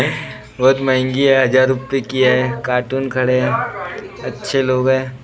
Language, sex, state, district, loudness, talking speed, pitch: Hindi, male, Maharashtra, Gondia, -16 LUFS, 150 wpm, 130 Hz